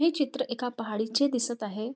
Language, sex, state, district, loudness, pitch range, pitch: Marathi, female, Maharashtra, Nagpur, -29 LUFS, 225-270 Hz, 245 Hz